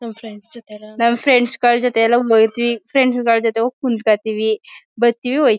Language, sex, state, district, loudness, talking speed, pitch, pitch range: Kannada, female, Karnataka, Mysore, -16 LUFS, 205 wpm, 235 Hz, 220-240 Hz